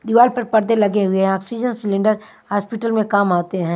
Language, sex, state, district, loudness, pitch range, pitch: Hindi, female, Himachal Pradesh, Shimla, -18 LUFS, 195-230 Hz, 210 Hz